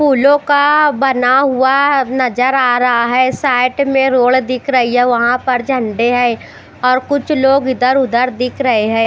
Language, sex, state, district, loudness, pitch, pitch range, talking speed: Hindi, female, Chandigarh, Chandigarh, -13 LUFS, 255 Hz, 245-270 Hz, 170 wpm